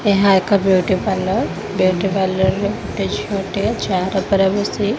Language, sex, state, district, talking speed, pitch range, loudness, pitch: Odia, female, Odisha, Khordha, 145 wpm, 190-200 Hz, -18 LUFS, 195 Hz